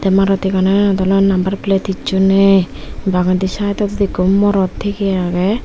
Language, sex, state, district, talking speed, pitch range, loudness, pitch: Chakma, female, Tripura, Unakoti, 140 wpm, 190-200 Hz, -15 LUFS, 195 Hz